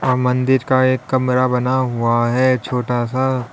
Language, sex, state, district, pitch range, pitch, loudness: Hindi, male, Uttar Pradesh, Lalitpur, 125-130 Hz, 130 Hz, -17 LUFS